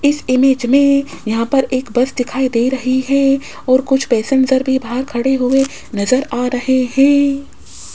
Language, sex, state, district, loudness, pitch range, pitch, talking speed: Hindi, female, Rajasthan, Jaipur, -15 LUFS, 250-270 Hz, 260 Hz, 165 wpm